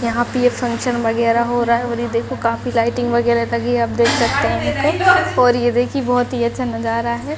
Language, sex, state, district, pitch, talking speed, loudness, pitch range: Hindi, female, Chhattisgarh, Raigarh, 240 Hz, 245 wpm, -17 LUFS, 235-245 Hz